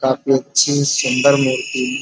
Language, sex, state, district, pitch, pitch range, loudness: Hindi, male, Uttar Pradesh, Muzaffarnagar, 135 Hz, 130-140 Hz, -16 LUFS